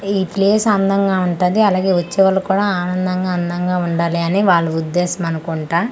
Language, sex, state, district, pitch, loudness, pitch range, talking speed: Telugu, female, Andhra Pradesh, Manyam, 185 Hz, -16 LUFS, 175-195 Hz, 130 wpm